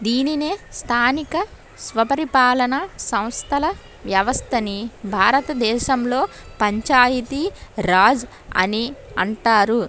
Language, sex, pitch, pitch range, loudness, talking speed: English, female, 245 Hz, 225-275 Hz, -19 LUFS, 65 wpm